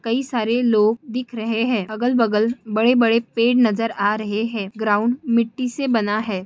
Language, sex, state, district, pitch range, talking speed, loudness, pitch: Hindi, female, Goa, North and South Goa, 215-240 Hz, 195 wpm, -20 LUFS, 230 Hz